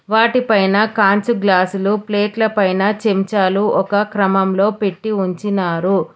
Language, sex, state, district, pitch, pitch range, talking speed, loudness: Telugu, female, Telangana, Hyderabad, 205 Hz, 195-215 Hz, 95 wpm, -16 LUFS